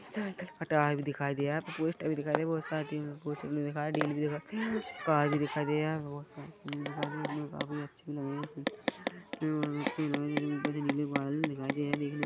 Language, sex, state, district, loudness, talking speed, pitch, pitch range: Hindi, male, Chhattisgarh, Korba, -34 LUFS, 155 wpm, 150 Hz, 145-155 Hz